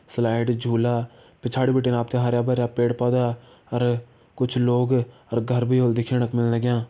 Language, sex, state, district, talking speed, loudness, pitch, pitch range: Hindi, male, Uttarakhand, Tehri Garhwal, 155 wpm, -23 LUFS, 120 Hz, 120-125 Hz